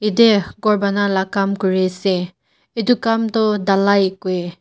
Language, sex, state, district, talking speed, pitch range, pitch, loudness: Nagamese, female, Nagaland, Dimapur, 155 wpm, 185-215 Hz, 200 Hz, -17 LUFS